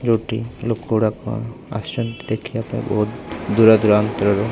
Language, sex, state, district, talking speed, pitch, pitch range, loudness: Odia, male, Odisha, Khordha, 135 wpm, 110 Hz, 105-115 Hz, -20 LUFS